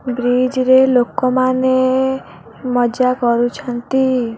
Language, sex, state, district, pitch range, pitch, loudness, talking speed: Odia, female, Odisha, Khordha, 245-260 Hz, 255 Hz, -15 LUFS, 70 wpm